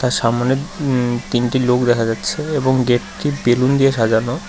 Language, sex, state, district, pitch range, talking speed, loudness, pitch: Bengali, male, West Bengal, Cooch Behar, 120-135 Hz, 160 wpm, -17 LUFS, 125 Hz